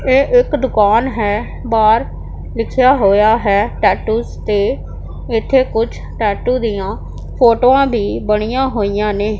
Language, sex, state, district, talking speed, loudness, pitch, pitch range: Punjabi, female, Punjab, Pathankot, 120 wpm, -14 LUFS, 225 Hz, 210-250 Hz